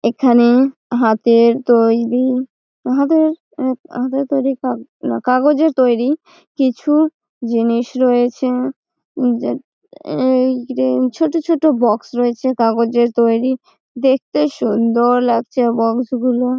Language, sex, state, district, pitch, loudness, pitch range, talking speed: Bengali, female, West Bengal, Malda, 255 Hz, -16 LUFS, 240-270 Hz, 85 wpm